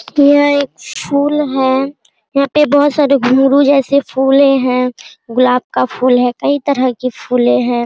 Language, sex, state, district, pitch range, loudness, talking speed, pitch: Hindi, female, Bihar, Araria, 250-285 Hz, -12 LUFS, 185 wpm, 270 Hz